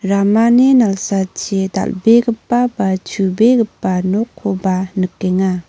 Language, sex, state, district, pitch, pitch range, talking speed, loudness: Garo, female, Meghalaya, North Garo Hills, 195 Hz, 190-230 Hz, 75 wpm, -15 LUFS